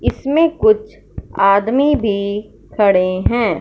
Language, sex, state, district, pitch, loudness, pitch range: Hindi, male, Punjab, Fazilka, 220 Hz, -15 LUFS, 200-295 Hz